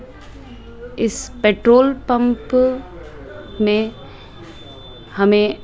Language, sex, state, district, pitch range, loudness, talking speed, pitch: Hindi, female, Rajasthan, Jaipur, 210-250 Hz, -17 LUFS, 55 wpm, 235 Hz